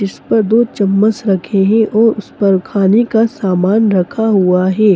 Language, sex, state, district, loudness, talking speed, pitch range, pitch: Hindi, female, Bihar, East Champaran, -13 LUFS, 180 wpm, 195-225 Hz, 205 Hz